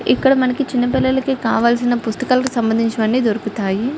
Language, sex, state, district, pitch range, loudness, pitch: Telugu, female, Andhra Pradesh, Chittoor, 225-260 Hz, -17 LUFS, 245 Hz